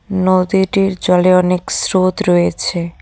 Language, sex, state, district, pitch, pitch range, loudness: Bengali, female, West Bengal, Cooch Behar, 185 Hz, 180-190 Hz, -14 LUFS